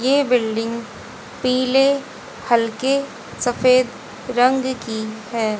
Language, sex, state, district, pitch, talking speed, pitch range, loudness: Hindi, female, Haryana, Jhajjar, 250 Hz, 85 wpm, 230-260 Hz, -19 LUFS